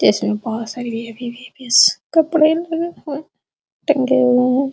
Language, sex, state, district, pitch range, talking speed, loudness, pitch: Hindi, female, Uttar Pradesh, Deoria, 240-310 Hz, 115 wpm, -17 LUFS, 255 Hz